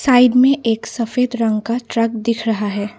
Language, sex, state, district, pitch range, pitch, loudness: Hindi, female, Assam, Kamrup Metropolitan, 220-250 Hz, 230 Hz, -17 LUFS